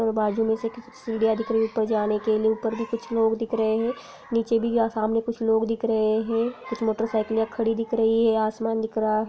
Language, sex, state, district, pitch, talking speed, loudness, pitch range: Hindi, female, Bihar, Gaya, 225 Hz, 245 wpm, -24 LUFS, 220-230 Hz